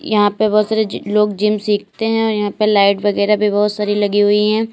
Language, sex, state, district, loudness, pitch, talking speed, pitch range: Hindi, female, Uttar Pradesh, Lalitpur, -15 LUFS, 210 Hz, 255 wpm, 205-215 Hz